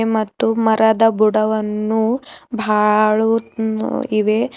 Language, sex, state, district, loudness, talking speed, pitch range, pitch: Kannada, female, Karnataka, Bidar, -17 LUFS, 65 wpm, 215-225 Hz, 220 Hz